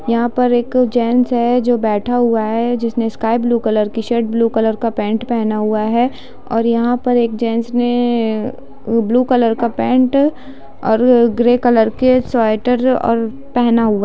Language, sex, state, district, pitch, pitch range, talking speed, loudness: Hindi, female, Bihar, Sitamarhi, 235 Hz, 225-245 Hz, 175 wpm, -15 LUFS